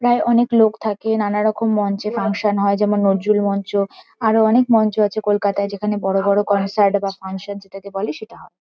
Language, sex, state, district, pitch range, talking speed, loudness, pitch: Bengali, female, West Bengal, Kolkata, 200-220 Hz, 195 wpm, -18 LUFS, 205 Hz